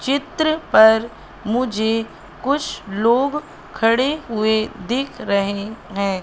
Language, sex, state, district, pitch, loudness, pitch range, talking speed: Hindi, female, Madhya Pradesh, Katni, 225 Hz, -19 LUFS, 215-275 Hz, 95 wpm